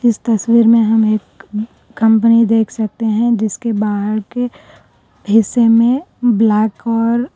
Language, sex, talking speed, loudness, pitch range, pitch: Urdu, female, 130 wpm, -14 LUFS, 215-235 Hz, 225 Hz